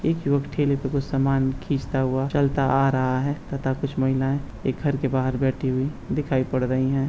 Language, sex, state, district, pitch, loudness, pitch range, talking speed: Hindi, male, Uttar Pradesh, Budaun, 135 Hz, -24 LUFS, 130-140 Hz, 210 wpm